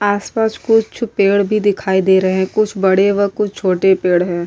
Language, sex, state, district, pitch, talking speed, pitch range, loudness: Hindi, female, Goa, North and South Goa, 200 Hz, 215 wpm, 190-210 Hz, -15 LUFS